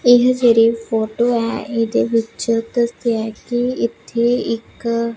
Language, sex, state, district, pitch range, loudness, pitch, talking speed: Punjabi, female, Punjab, Pathankot, 230-240 Hz, -18 LUFS, 230 Hz, 130 wpm